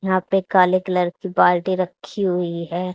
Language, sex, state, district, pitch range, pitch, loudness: Hindi, female, Haryana, Charkhi Dadri, 180-190 Hz, 185 Hz, -20 LUFS